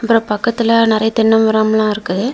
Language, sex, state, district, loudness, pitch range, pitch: Tamil, female, Tamil Nadu, Kanyakumari, -14 LUFS, 215-230 Hz, 220 Hz